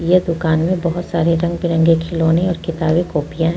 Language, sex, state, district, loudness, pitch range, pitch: Hindi, female, Jharkhand, Deoghar, -17 LUFS, 165-175 Hz, 165 Hz